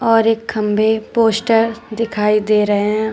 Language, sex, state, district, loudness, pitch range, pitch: Hindi, female, Uttar Pradesh, Shamli, -16 LUFS, 210-225 Hz, 220 Hz